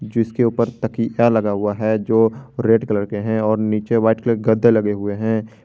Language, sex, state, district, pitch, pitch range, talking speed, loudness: Hindi, male, Jharkhand, Garhwa, 110 Hz, 110-115 Hz, 200 wpm, -18 LUFS